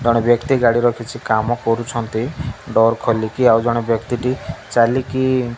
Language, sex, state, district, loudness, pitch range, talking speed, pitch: Odia, male, Odisha, Malkangiri, -18 LUFS, 115-125 Hz, 140 wpm, 120 Hz